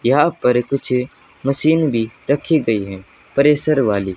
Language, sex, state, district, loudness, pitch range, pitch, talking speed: Hindi, male, Haryana, Jhajjar, -17 LUFS, 110-145 Hz, 130 Hz, 145 wpm